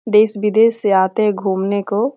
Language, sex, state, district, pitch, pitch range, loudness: Hindi, female, Bihar, Jahanabad, 210 Hz, 200-220 Hz, -16 LUFS